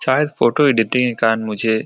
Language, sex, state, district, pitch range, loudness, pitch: Hindi, male, Bihar, Saran, 110-130 Hz, -16 LUFS, 115 Hz